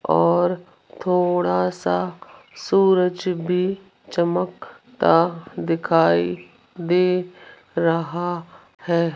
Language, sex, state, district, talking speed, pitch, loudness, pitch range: Hindi, female, Rajasthan, Jaipur, 65 wpm, 175 Hz, -21 LUFS, 165-180 Hz